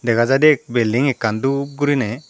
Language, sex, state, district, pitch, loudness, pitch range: Chakma, female, Tripura, Dhalai, 135 Hz, -17 LUFS, 115-140 Hz